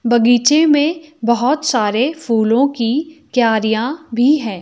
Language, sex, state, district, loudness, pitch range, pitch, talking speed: Hindi, female, Himachal Pradesh, Shimla, -15 LUFS, 230-300 Hz, 250 Hz, 115 wpm